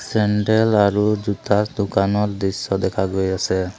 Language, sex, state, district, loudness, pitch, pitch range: Assamese, male, Assam, Sonitpur, -19 LUFS, 100 Hz, 95-105 Hz